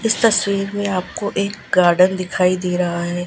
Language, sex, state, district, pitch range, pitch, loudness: Hindi, female, Gujarat, Gandhinagar, 180-200 Hz, 185 Hz, -18 LUFS